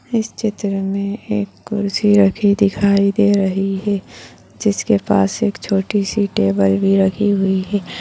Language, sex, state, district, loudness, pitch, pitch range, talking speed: Hindi, female, Bihar, Bhagalpur, -17 LUFS, 195 Hz, 185-205 Hz, 150 wpm